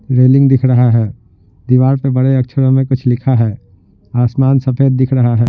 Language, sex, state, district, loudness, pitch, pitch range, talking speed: Hindi, male, Bihar, Patna, -12 LUFS, 130 Hz, 115-135 Hz, 185 wpm